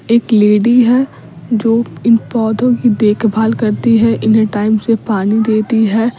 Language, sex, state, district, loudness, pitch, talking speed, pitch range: Hindi, female, Bihar, Patna, -12 LUFS, 225 Hz, 165 wpm, 215-230 Hz